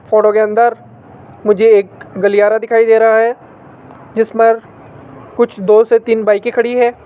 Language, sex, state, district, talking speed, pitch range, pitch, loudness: Hindi, male, Rajasthan, Jaipur, 160 wpm, 210-230 Hz, 220 Hz, -12 LUFS